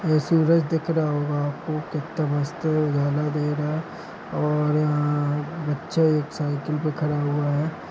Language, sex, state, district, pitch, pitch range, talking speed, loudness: Hindi, male, Bihar, Madhepura, 150 Hz, 145-155 Hz, 165 wpm, -24 LUFS